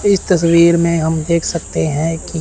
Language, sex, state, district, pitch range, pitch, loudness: Hindi, male, Chandigarh, Chandigarh, 160-170 Hz, 170 Hz, -14 LUFS